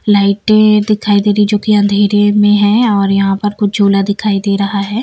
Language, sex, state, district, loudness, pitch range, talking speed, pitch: Hindi, female, Bihar, Patna, -11 LUFS, 200-210 Hz, 215 wpm, 205 Hz